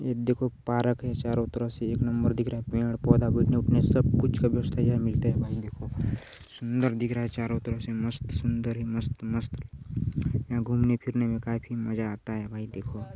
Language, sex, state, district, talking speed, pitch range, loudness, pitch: Hindi, male, Chhattisgarh, Balrampur, 210 wpm, 115-120 Hz, -28 LUFS, 120 Hz